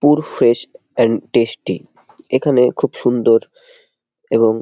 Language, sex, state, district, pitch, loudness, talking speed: Bengali, male, West Bengal, Jalpaiguri, 145 Hz, -16 LUFS, 115 wpm